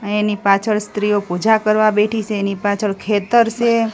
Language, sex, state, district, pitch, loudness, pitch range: Gujarati, female, Gujarat, Gandhinagar, 210 Hz, -17 LUFS, 205-215 Hz